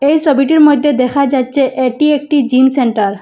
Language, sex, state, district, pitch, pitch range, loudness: Bengali, female, Assam, Hailakandi, 275 Hz, 255-295 Hz, -11 LUFS